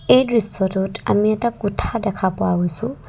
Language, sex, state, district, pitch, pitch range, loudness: Assamese, female, Assam, Kamrup Metropolitan, 205 Hz, 190-230 Hz, -19 LUFS